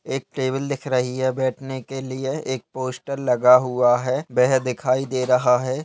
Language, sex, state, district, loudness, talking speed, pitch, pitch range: Hindi, male, Uttar Pradesh, Budaun, -21 LUFS, 185 wpm, 130 Hz, 125-135 Hz